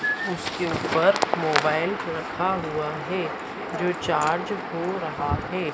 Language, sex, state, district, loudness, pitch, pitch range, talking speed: Hindi, female, Madhya Pradesh, Dhar, -25 LUFS, 165 Hz, 155-185 Hz, 115 wpm